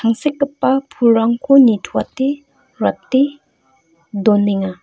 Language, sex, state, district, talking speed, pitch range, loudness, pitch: Garo, female, Meghalaya, North Garo Hills, 60 wpm, 205-275 Hz, -16 LUFS, 235 Hz